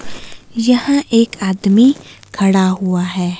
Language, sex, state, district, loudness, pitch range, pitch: Hindi, female, Himachal Pradesh, Shimla, -14 LUFS, 185-240 Hz, 200 Hz